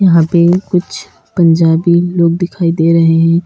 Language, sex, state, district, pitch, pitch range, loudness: Hindi, female, Uttar Pradesh, Lalitpur, 170 Hz, 165-175 Hz, -11 LUFS